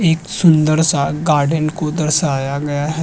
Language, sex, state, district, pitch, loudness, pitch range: Hindi, male, Uttar Pradesh, Hamirpur, 155 Hz, -16 LUFS, 145-160 Hz